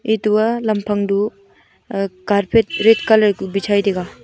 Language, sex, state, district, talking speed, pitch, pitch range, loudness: Wancho, female, Arunachal Pradesh, Longding, 140 wpm, 205 Hz, 195-220 Hz, -17 LUFS